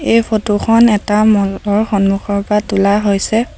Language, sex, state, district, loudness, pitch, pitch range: Assamese, female, Assam, Sonitpur, -13 LUFS, 210 Hz, 200-215 Hz